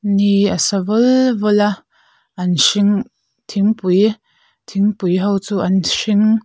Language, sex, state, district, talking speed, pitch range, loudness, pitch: Mizo, female, Mizoram, Aizawl, 130 wpm, 195-220 Hz, -16 LUFS, 205 Hz